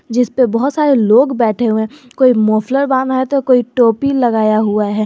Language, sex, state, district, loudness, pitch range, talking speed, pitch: Hindi, male, Jharkhand, Garhwa, -13 LUFS, 220-265 Hz, 200 wpm, 245 Hz